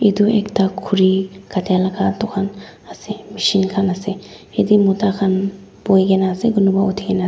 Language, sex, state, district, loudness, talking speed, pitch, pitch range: Nagamese, female, Nagaland, Dimapur, -17 LUFS, 155 wpm, 195 Hz, 190-205 Hz